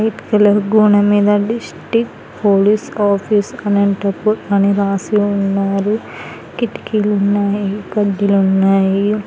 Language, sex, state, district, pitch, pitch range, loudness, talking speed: Telugu, female, Andhra Pradesh, Anantapur, 205 Hz, 200-210 Hz, -15 LUFS, 90 wpm